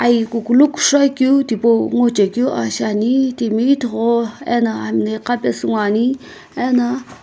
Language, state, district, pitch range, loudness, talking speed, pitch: Sumi, Nagaland, Kohima, 220-255 Hz, -16 LUFS, 135 wpm, 235 Hz